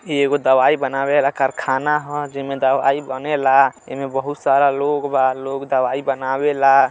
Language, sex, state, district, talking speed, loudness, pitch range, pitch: Bhojpuri, male, Uttar Pradesh, Deoria, 165 wpm, -18 LUFS, 135-145 Hz, 135 Hz